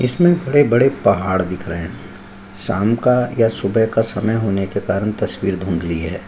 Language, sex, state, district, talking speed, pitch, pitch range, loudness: Hindi, male, Chhattisgarh, Sukma, 190 wpm, 100 Hz, 95-115 Hz, -18 LUFS